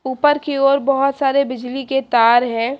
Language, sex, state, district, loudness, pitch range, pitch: Hindi, female, Haryana, Charkhi Dadri, -16 LUFS, 250-275 Hz, 270 Hz